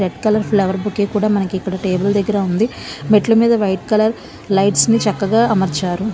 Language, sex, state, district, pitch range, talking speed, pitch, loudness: Telugu, female, Andhra Pradesh, Visakhapatnam, 190-215 Hz, 175 wpm, 205 Hz, -16 LUFS